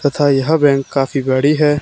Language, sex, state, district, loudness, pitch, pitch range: Hindi, male, Haryana, Charkhi Dadri, -14 LUFS, 140 Hz, 135-150 Hz